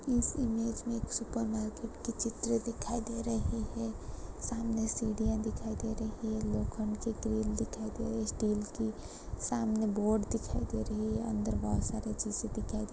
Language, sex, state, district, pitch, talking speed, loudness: Hindi, female, Goa, North and South Goa, 220 Hz, 185 wpm, -35 LUFS